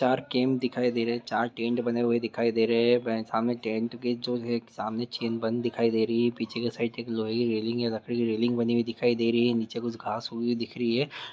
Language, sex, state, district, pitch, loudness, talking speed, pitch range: Hindi, male, Chhattisgarh, Bastar, 120 Hz, -28 LUFS, 265 wpm, 115-120 Hz